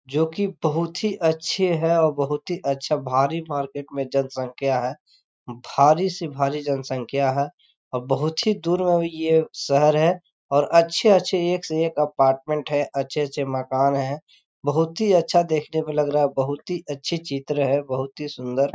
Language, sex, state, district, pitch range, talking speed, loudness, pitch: Hindi, male, Chhattisgarh, Korba, 140-165 Hz, 165 wpm, -22 LUFS, 150 Hz